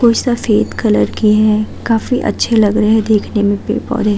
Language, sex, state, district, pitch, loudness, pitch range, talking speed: Hindi, female, Uttar Pradesh, Budaun, 215 Hz, -14 LUFS, 210-225 Hz, 200 wpm